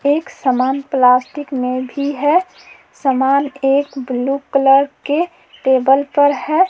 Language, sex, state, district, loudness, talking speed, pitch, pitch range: Hindi, female, Jharkhand, Palamu, -16 LUFS, 125 wpm, 275 Hz, 265-285 Hz